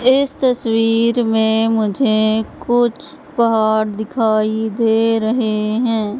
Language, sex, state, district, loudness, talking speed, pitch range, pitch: Hindi, female, Madhya Pradesh, Katni, -16 LUFS, 95 wpm, 220-240 Hz, 225 Hz